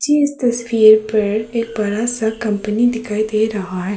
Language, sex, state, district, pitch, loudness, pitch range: Hindi, female, Arunachal Pradesh, Papum Pare, 220 Hz, -17 LUFS, 210-235 Hz